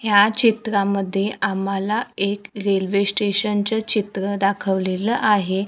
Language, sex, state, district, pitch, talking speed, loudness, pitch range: Marathi, female, Maharashtra, Gondia, 200 Hz, 95 wpm, -20 LUFS, 195-210 Hz